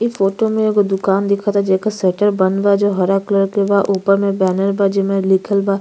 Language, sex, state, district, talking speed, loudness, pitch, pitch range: Bhojpuri, female, Uttar Pradesh, Gorakhpur, 235 wpm, -16 LUFS, 200 Hz, 195-200 Hz